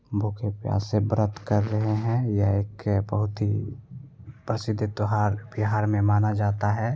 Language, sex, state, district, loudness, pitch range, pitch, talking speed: Hindi, male, Bihar, Begusarai, -25 LUFS, 105-110 Hz, 105 Hz, 145 wpm